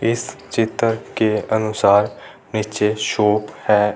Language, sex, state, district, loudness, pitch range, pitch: Hindi, male, Rajasthan, Churu, -19 LUFS, 105-110 Hz, 110 Hz